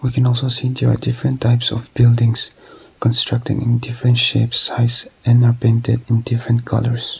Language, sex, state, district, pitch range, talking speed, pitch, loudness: English, male, Nagaland, Kohima, 115-125 Hz, 175 wpm, 120 Hz, -16 LUFS